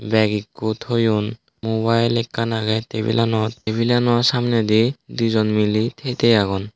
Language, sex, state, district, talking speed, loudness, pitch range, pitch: Chakma, male, Tripura, Dhalai, 135 wpm, -19 LUFS, 110-115 Hz, 110 Hz